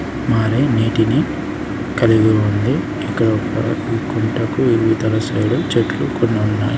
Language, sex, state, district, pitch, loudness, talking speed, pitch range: Telugu, male, Andhra Pradesh, Srikakulam, 110 Hz, -17 LUFS, 105 wpm, 110-115 Hz